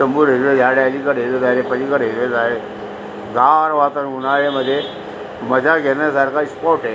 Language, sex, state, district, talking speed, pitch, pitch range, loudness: Marathi, female, Maharashtra, Aurangabad, 165 wpm, 135 Hz, 130-145 Hz, -16 LUFS